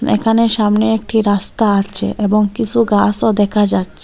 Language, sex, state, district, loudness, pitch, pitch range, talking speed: Bengali, female, Assam, Hailakandi, -14 LUFS, 210 Hz, 205-225 Hz, 150 wpm